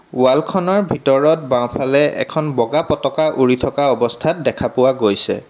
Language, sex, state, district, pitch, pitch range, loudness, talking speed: Assamese, male, Assam, Kamrup Metropolitan, 135 Hz, 125-155 Hz, -16 LUFS, 140 wpm